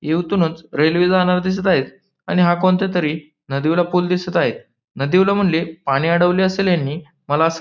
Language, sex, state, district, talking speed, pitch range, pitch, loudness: Marathi, male, Maharashtra, Pune, 165 wpm, 160-185 Hz, 175 Hz, -18 LUFS